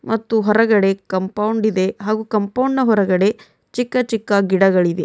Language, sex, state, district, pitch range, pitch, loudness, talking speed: Kannada, female, Karnataka, Bidar, 195-225 Hz, 210 Hz, -17 LUFS, 130 wpm